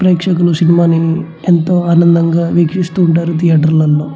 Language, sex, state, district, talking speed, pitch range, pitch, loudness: Telugu, male, Andhra Pradesh, Chittoor, 130 wpm, 165-175 Hz, 170 Hz, -11 LUFS